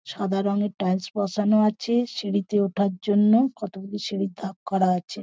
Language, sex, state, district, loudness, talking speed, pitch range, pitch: Bengali, female, West Bengal, Purulia, -24 LUFS, 160 wpm, 195-215 Hz, 200 Hz